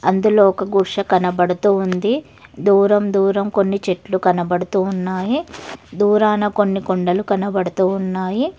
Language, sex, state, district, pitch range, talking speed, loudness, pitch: Telugu, female, Telangana, Hyderabad, 185-205 Hz, 110 wpm, -17 LUFS, 195 Hz